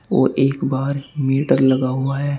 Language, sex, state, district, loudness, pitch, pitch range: Hindi, male, Uttar Pradesh, Shamli, -18 LUFS, 135 Hz, 135-140 Hz